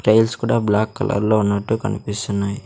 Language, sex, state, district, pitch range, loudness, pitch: Telugu, male, Andhra Pradesh, Sri Satya Sai, 105-110 Hz, -19 LUFS, 105 Hz